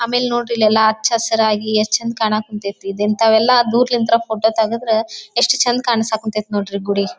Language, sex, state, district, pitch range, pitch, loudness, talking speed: Kannada, female, Karnataka, Dharwad, 215-235 Hz, 220 Hz, -16 LUFS, 160 wpm